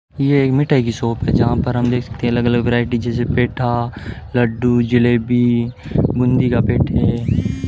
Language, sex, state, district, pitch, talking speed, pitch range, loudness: Hindi, male, Rajasthan, Bikaner, 120 Hz, 180 wpm, 120-125 Hz, -17 LUFS